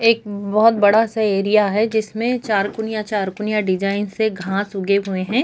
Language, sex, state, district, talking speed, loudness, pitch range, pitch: Hindi, female, Chhattisgarh, Kabirdham, 185 wpm, -19 LUFS, 200-220 Hz, 210 Hz